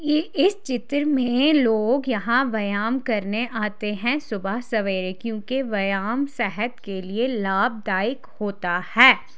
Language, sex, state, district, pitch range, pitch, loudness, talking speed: Hindi, female, Haryana, Charkhi Dadri, 205-260 Hz, 230 Hz, -22 LUFS, 135 wpm